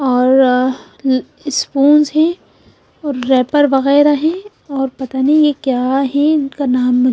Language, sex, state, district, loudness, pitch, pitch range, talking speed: Hindi, female, Punjab, Fazilka, -14 LUFS, 275 Hz, 260-295 Hz, 145 wpm